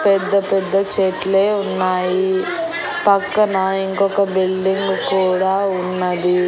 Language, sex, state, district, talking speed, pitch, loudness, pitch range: Telugu, female, Andhra Pradesh, Annamaya, 85 wpm, 195 Hz, -17 LUFS, 185-200 Hz